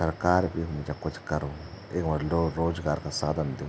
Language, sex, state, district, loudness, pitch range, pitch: Garhwali, male, Uttarakhand, Tehri Garhwal, -29 LUFS, 75-85 Hz, 80 Hz